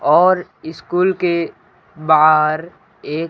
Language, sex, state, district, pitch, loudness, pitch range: Hindi, male, Bihar, Kaimur, 170 Hz, -16 LUFS, 155-180 Hz